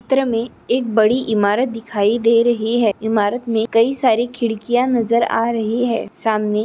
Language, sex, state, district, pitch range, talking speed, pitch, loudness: Hindi, female, Andhra Pradesh, Chittoor, 220-240 Hz, 145 wpm, 230 Hz, -17 LUFS